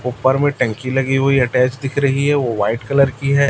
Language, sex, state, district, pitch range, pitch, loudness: Hindi, male, Chhattisgarh, Raipur, 125-140 Hz, 135 Hz, -17 LUFS